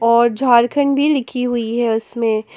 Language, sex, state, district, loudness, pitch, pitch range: Hindi, female, Jharkhand, Ranchi, -16 LUFS, 235 Hz, 230-255 Hz